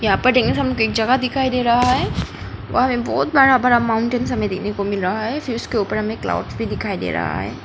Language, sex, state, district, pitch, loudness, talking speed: Hindi, female, Arunachal Pradesh, Papum Pare, 225 Hz, -19 LUFS, 235 wpm